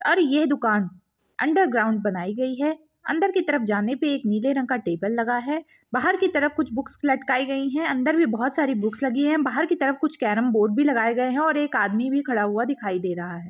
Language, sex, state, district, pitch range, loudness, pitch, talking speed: Kumaoni, female, Uttarakhand, Uttarkashi, 220-300 Hz, -23 LUFS, 270 Hz, 245 wpm